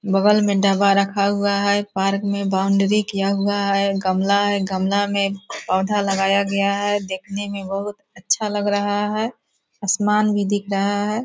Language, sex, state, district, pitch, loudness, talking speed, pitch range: Hindi, female, Bihar, Purnia, 200 Hz, -20 LUFS, 175 wpm, 195-205 Hz